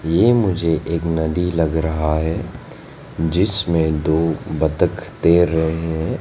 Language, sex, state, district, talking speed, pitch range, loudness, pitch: Hindi, male, Arunachal Pradesh, Lower Dibang Valley, 125 wpm, 80-90 Hz, -18 LUFS, 80 Hz